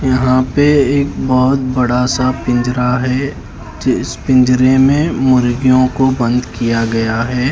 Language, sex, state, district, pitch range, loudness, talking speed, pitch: Hindi, male, Haryana, Charkhi Dadri, 120-130 Hz, -13 LUFS, 145 wpm, 130 Hz